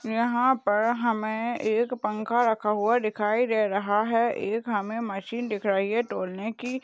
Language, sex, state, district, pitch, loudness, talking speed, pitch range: Hindi, female, Maharashtra, Chandrapur, 225 Hz, -26 LUFS, 160 wpm, 210-235 Hz